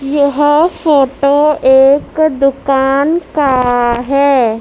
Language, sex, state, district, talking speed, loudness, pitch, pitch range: Hindi, female, Madhya Pradesh, Dhar, 80 wpm, -11 LUFS, 275 Hz, 265-295 Hz